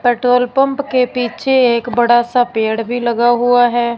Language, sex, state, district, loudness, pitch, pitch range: Hindi, female, Punjab, Fazilka, -14 LUFS, 245 Hz, 240-250 Hz